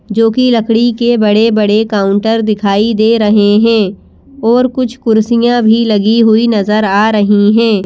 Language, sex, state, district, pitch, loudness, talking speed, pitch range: Hindi, female, Madhya Pradesh, Bhopal, 220 Hz, -10 LUFS, 155 wpm, 210-230 Hz